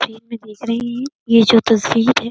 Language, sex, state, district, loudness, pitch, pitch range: Hindi, female, Uttar Pradesh, Jyotiba Phule Nagar, -15 LUFS, 230 Hz, 225-240 Hz